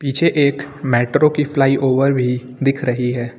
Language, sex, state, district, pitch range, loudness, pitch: Hindi, male, Uttar Pradesh, Lucknow, 125-145 Hz, -17 LUFS, 135 Hz